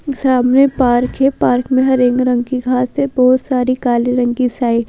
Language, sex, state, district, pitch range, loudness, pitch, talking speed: Hindi, female, Madhya Pradesh, Bhopal, 245-260 Hz, -14 LUFS, 250 Hz, 195 wpm